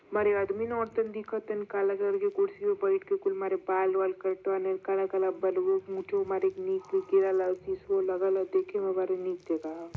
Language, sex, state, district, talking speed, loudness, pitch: Bhojpuri, female, Uttar Pradesh, Varanasi, 170 wpm, -30 LUFS, 205 Hz